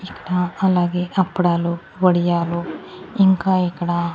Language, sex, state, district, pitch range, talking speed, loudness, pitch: Telugu, female, Andhra Pradesh, Annamaya, 175-185 Hz, 85 wpm, -19 LUFS, 180 Hz